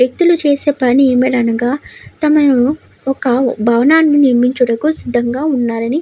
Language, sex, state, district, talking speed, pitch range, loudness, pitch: Telugu, female, Andhra Pradesh, Krishna, 140 wpm, 245-295 Hz, -13 LUFS, 260 Hz